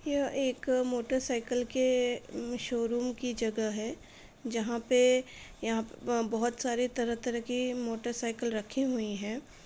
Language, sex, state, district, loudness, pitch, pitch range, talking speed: Hindi, female, Uttar Pradesh, Etah, -32 LUFS, 245 Hz, 230-250 Hz, 135 wpm